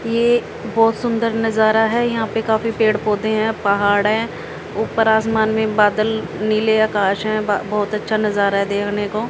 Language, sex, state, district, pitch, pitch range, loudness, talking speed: Hindi, female, Haryana, Jhajjar, 220 Hz, 210-225 Hz, -18 LUFS, 175 wpm